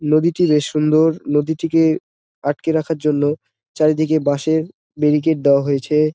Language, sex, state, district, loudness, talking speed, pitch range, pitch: Bengali, male, West Bengal, Jalpaiguri, -17 LUFS, 115 wpm, 145-160 Hz, 155 Hz